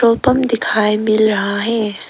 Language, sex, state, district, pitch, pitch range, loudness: Hindi, female, Arunachal Pradesh, Longding, 215 Hz, 210-230 Hz, -15 LUFS